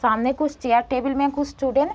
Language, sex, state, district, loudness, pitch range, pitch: Hindi, female, Bihar, East Champaran, -22 LUFS, 255-285 Hz, 275 Hz